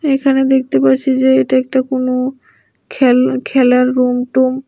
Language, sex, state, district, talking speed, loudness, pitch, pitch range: Bengali, female, Tripura, West Tripura, 140 wpm, -13 LUFS, 255 Hz, 245-265 Hz